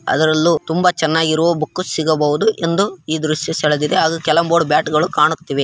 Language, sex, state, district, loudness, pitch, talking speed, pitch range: Kannada, male, Karnataka, Raichur, -16 LUFS, 160 Hz, 140 wpm, 155-170 Hz